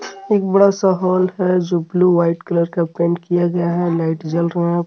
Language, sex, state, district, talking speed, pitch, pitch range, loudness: Hindi, male, Jharkhand, Garhwa, 220 wpm, 175 Hz, 170-185 Hz, -17 LUFS